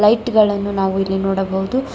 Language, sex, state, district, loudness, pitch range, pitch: Kannada, female, Karnataka, Bangalore, -17 LUFS, 195-215 Hz, 200 Hz